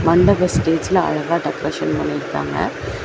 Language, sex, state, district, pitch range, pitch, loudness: Tamil, female, Tamil Nadu, Chennai, 165-180 Hz, 170 Hz, -19 LUFS